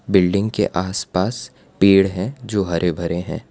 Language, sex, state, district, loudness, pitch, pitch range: Hindi, female, Gujarat, Valsad, -19 LUFS, 95 Hz, 90-105 Hz